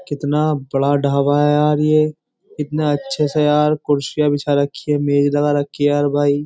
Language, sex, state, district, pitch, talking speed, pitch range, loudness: Hindi, male, Uttar Pradesh, Jyotiba Phule Nagar, 145 Hz, 185 wpm, 145-150 Hz, -17 LUFS